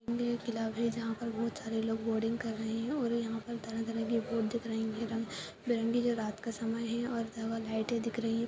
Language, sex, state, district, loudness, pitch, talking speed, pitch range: Hindi, female, Uttarakhand, Uttarkashi, -35 LUFS, 230 Hz, 245 wpm, 225-235 Hz